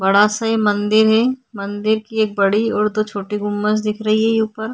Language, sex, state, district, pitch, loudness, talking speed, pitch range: Hindi, female, Maharashtra, Chandrapur, 215 Hz, -17 LUFS, 225 wpm, 205-220 Hz